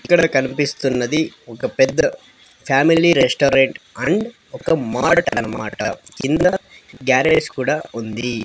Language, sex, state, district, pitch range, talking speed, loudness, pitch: Telugu, female, Andhra Pradesh, Sri Satya Sai, 130-160 Hz, 100 wpm, -18 LUFS, 135 Hz